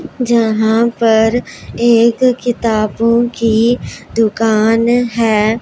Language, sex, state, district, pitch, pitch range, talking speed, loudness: Hindi, female, Punjab, Pathankot, 230 Hz, 220-240 Hz, 75 wpm, -13 LUFS